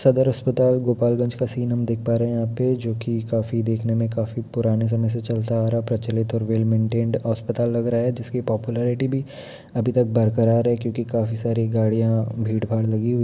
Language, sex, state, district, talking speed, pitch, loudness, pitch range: Hindi, male, Bihar, Muzaffarpur, 215 wpm, 115 Hz, -22 LUFS, 115-120 Hz